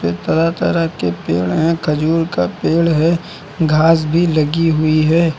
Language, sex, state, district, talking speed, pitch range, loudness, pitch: Hindi, male, Uttar Pradesh, Lucknow, 155 wpm, 150-165 Hz, -15 LUFS, 160 Hz